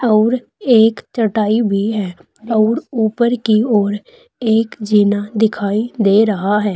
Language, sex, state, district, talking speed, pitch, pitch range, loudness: Hindi, female, Uttar Pradesh, Saharanpur, 135 wpm, 220 Hz, 210-230 Hz, -15 LUFS